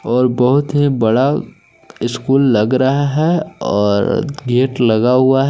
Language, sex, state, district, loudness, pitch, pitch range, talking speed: Hindi, male, Jharkhand, Palamu, -15 LUFS, 130 Hz, 120-140 Hz, 140 wpm